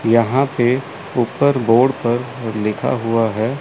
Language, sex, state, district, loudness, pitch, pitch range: Hindi, male, Chandigarh, Chandigarh, -18 LUFS, 120 Hz, 115-130 Hz